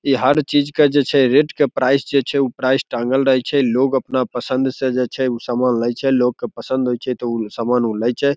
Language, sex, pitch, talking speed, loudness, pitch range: Maithili, male, 130 Hz, 250 wpm, -18 LUFS, 125-135 Hz